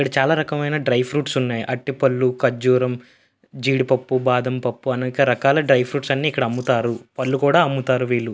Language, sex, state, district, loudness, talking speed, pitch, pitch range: Telugu, male, Andhra Pradesh, Visakhapatnam, -20 LUFS, 145 wpm, 130 Hz, 125-140 Hz